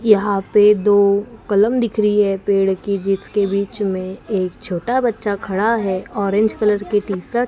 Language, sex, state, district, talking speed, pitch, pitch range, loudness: Hindi, female, Maharashtra, Gondia, 185 wpm, 205 Hz, 195-215 Hz, -18 LUFS